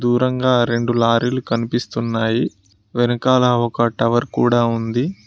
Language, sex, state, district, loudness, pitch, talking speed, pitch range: Telugu, male, Telangana, Mahabubabad, -18 LUFS, 120 Hz, 105 wpm, 115-125 Hz